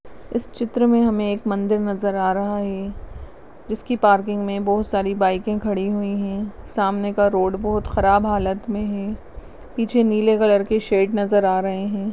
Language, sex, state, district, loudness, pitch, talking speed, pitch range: Hindi, female, Rajasthan, Nagaur, -21 LUFS, 205 Hz, 180 wpm, 200-215 Hz